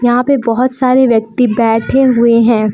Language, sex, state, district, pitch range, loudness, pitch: Hindi, female, Jharkhand, Palamu, 230-255 Hz, -11 LUFS, 240 Hz